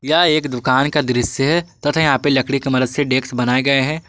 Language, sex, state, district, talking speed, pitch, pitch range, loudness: Hindi, male, Jharkhand, Garhwa, 280 wpm, 135 Hz, 130-150 Hz, -17 LUFS